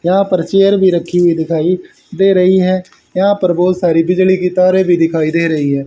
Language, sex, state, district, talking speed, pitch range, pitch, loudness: Hindi, male, Haryana, Charkhi Dadri, 225 wpm, 165-185 Hz, 180 Hz, -12 LUFS